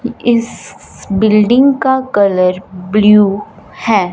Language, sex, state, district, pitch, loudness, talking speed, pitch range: Hindi, female, Punjab, Fazilka, 210 Hz, -12 LUFS, 85 wpm, 195-235 Hz